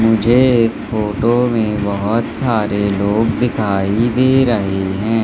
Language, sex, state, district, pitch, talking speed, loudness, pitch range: Hindi, male, Madhya Pradesh, Katni, 110 Hz, 125 wpm, -15 LUFS, 100-120 Hz